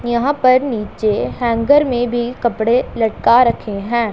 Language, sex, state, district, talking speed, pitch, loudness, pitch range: Hindi, female, Punjab, Pathankot, 145 wpm, 235 Hz, -16 LUFS, 225-250 Hz